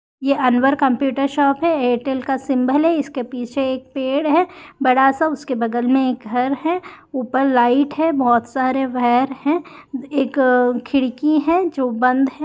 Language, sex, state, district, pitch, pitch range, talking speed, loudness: Hindi, female, Jharkhand, Sahebganj, 270 Hz, 255-290 Hz, 170 wpm, -18 LUFS